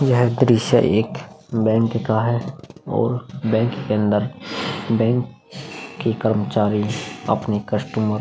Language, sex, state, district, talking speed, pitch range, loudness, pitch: Hindi, male, Uttar Pradesh, Hamirpur, 115 wpm, 105-120 Hz, -20 LUFS, 110 Hz